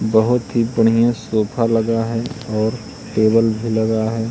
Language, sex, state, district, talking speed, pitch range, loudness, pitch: Hindi, male, Madhya Pradesh, Katni, 155 wpm, 110-115 Hz, -18 LUFS, 115 Hz